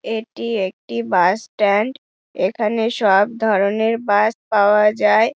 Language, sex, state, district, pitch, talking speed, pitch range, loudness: Bengali, female, West Bengal, Dakshin Dinajpur, 215 Hz, 110 wpm, 205-225 Hz, -18 LUFS